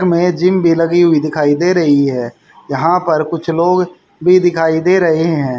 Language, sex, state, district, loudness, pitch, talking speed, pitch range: Hindi, male, Haryana, Rohtak, -13 LUFS, 165 Hz, 195 wpm, 155-180 Hz